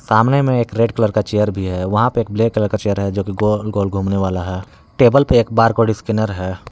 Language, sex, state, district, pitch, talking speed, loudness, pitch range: Hindi, male, Jharkhand, Palamu, 105 Hz, 275 wpm, -17 LUFS, 100-115 Hz